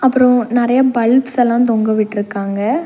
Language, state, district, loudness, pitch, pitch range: Tamil, Tamil Nadu, Nilgiris, -14 LUFS, 240 Hz, 215-255 Hz